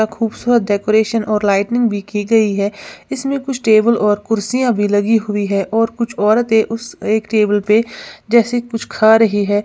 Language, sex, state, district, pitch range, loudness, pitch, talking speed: Hindi, female, Uttar Pradesh, Lalitpur, 205-230 Hz, -15 LUFS, 220 Hz, 180 wpm